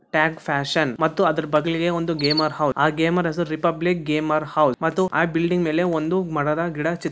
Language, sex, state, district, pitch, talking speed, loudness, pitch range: Kannada, male, Karnataka, Bellary, 160 Hz, 185 wpm, -21 LUFS, 155-170 Hz